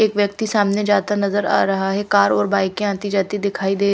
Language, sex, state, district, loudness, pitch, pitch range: Hindi, female, Punjab, Fazilka, -18 LUFS, 200 Hz, 195-205 Hz